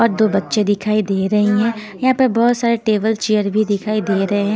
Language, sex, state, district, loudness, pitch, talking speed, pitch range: Hindi, female, Haryana, Rohtak, -17 LUFS, 215 Hz, 235 wpm, 205-225 Hz